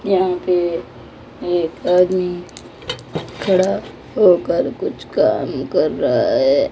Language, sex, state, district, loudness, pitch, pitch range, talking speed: Hindi, female, Odisha, Malkangiri, -18 LUFS, 180 Hz, 175-200 Hz, 100 wpm